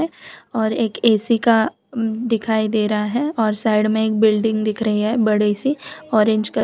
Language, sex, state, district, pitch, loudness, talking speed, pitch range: Hindi, female, Gujarat, Valsad, 220 Hz, -19 LUFS, 180 wpm, 215-230 Hz